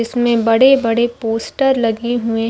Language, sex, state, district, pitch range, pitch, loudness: Hindi, female, Chhattisgarh, Bastar, 225-240 Hz, 230 Hz, -15 LUFS